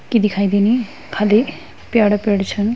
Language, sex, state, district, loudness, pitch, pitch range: Hindi, female, Uttarakhand, Uttarkashi, -17 LUFS, 210 Hz, 205-225 Hz